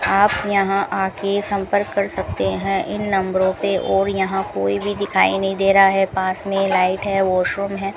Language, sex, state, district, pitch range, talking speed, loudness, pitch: Hindi, female, Rajasthan, Bikaner, 190-200 Hz, 195 wpm, -19 LUFS, 195 Hz